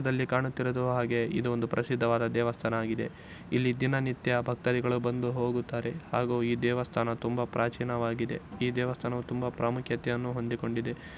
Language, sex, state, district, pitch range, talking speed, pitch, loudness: Kannada, male, Karnataka, Shimoga, 120-125 Hz, 130 wpm, 120 Hz, -31 LUFS